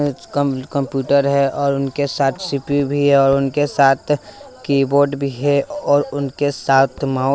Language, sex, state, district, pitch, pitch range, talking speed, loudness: Hindi, male, Bihar, West Champaran, 140 Hz, 135-145 Hz, 145 wpm, -17 LUFS